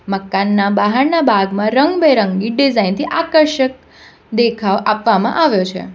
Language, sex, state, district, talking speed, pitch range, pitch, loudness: Gujarati, female, Gujarat, Valsad, 110 wpm, 200-275 Hz, 220 Hz, -14 LUFS